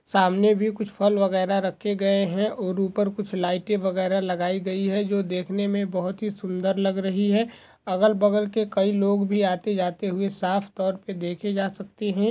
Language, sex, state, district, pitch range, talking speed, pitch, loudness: Hindi, male, Goa, North and South Goa, 190-205 Hz, 190 wpm, 195 Hz, -24 LUFS